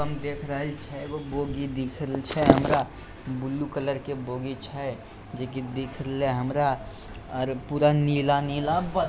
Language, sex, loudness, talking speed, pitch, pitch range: Maithili, male, -27 LUFS, 190 wpm, 135 Hz, 130-145 Hz